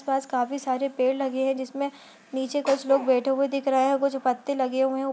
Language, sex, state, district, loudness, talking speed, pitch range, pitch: Hindi, female, Bihar, Gaya, -25 LUFS, 245 wpm, 260-275 Hz, 270 Hz